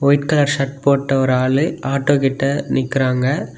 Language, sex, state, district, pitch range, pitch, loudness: Tamil, male, Tamil Nadu, Kanyakumari, 135-140 Hz, 140 Hz, -17 LUFS